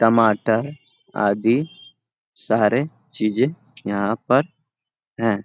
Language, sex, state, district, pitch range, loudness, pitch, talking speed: Hindi, male, Bihar, Lakhisarai, 110-135 Hz, -21 LUFS, 115 Hz, 75 wpm